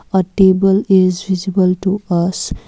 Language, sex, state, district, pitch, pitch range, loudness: English, female, Assam, Kamrup Metropolitan, 190 Hz, 185-195 Hz, -14 LUFS